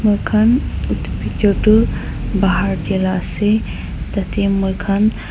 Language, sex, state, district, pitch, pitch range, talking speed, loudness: Nagamese, female, Nagaland, Dimapur, 205 Hz, 195-215 Hz, 125 wpm, -17 LUFS